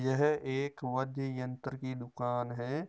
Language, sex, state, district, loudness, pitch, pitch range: Marwari, male, Rajasthan, Nagaur, -35 LUFS, 130 Hz, 125-140 Hz